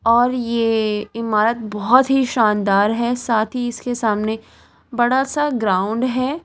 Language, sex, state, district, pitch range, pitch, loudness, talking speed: Hindi, female, Delhi, New Delhi, 215-250 Hz, 230 Hz, -18 LUFS, 140 wpm